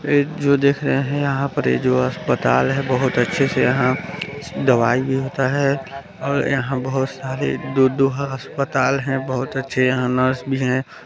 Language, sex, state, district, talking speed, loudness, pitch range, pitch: Hindi, male, Chhattisgarh, Balrampur, 185 wpm, -20 LUFS, 130-140 Hz, 135 Hz